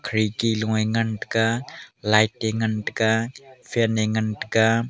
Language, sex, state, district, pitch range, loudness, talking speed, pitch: Wancho, male, Arunachal Pradesh, Longding, 110-115 Hz, -23 LUFS, 160 wpm, 110 Hz